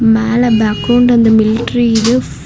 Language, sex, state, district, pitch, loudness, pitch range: Tamil, female, Tamil Nadu, Nilgiris, 225 Hz, -11 LUFS, 220-240 Hz